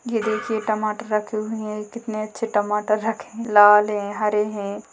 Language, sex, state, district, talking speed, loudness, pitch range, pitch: Hindi, female, Uttarakhand, Uttarkashi, 195 wpm, -21 LUFS, 210-220 Hz, 215 Hz